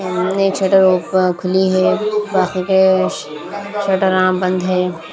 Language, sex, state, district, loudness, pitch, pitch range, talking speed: Hindi, female, Haryana, Rohtak, -15 LUFS, 185 Hz, 185-190 Hz, 105 wpm